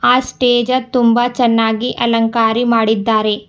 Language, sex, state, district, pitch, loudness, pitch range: Kannada, female, Karnataka, Bidar, 235 Hz, -14 LUFS, 225-245 Hz